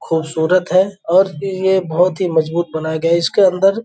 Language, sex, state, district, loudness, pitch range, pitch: Hindi, male, Uttar Pradesh, Gorakhpur, -16 LUFS, 160-190 Hz, 180 Hz